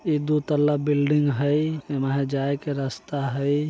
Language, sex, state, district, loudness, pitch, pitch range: Bajjika, male, Bihar, Vaishali, -24 LUFS, 145 Hz, 140-150 Hz